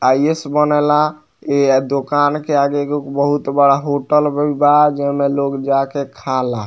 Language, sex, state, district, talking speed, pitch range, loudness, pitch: Bhojpuri, male, Bihar, Muzaffarpur, 155 wpm, 140-145 Hz, -16 LUFS, 140 Hz